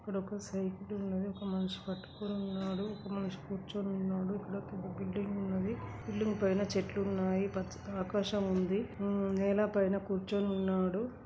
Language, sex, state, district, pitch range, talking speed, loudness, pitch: Telugu, female, Andhra Pradesh, Guntur, 190-200 Hz, 145 wpm, -36 LUFS, 195 Hz